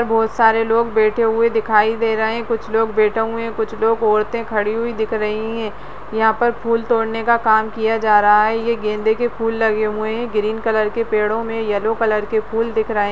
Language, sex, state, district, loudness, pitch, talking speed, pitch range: Hindi, female, Uttarakhand, Tehri Garhwal, -18 LUFS, 225 Hz, 240 wpm, 215-230 Hz